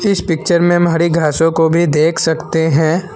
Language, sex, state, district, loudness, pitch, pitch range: Hindi, male, Assam, Kamrup Metropolitan, -13 LUFS, 165 Hz, 160-170 Hz